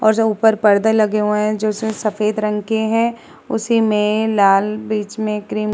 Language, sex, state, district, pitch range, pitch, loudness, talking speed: Hindi, female, Uttar Pradesh, Muzaffarnagar, 210-220 Hz, 215 Hz, -17 LUFS, 210 wpm